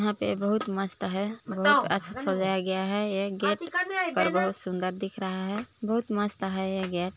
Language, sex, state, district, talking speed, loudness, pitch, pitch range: Hindi, female, Chhattisgarh, Balrampur, 200 wpm, -28 LUFS, 195 Hz, 190-210 Hz